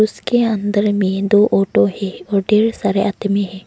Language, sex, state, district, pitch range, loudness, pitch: Hindi, female, Arunachal Pradesh, Longding, 195-210 Hz, -16 LUFS, 200 Hz